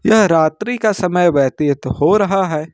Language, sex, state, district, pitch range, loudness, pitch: Hindi, male, Jharkhand, Ranchi, 150-210 Hz, -15 LUFS, 175 Hz